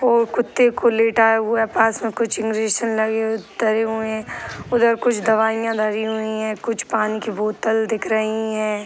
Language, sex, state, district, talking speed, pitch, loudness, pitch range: Hindi, female, Bihar, Sitamarhi, 215 wpm, 220 Hz, -20 LUFS, 220-230 Hz